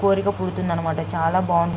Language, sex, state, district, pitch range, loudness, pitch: Telugu, female, Andhra Pradesh, Guntur, 160-185 Hz, -22 LUFS, 170 Hz